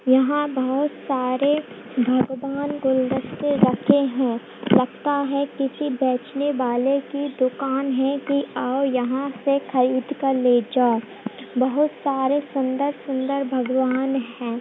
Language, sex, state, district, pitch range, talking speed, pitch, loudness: Hindi, female, Bihar, Purnia, 255-280 Hz, 125 wpm, 265 Hz, -22 LUFS